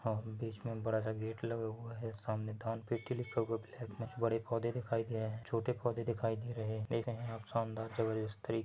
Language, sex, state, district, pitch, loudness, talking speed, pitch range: Hindi, male, Chhattisgarh, Bilaspur, 115 Hz, -39 LUFS, 215 wpm, 110-115 Hz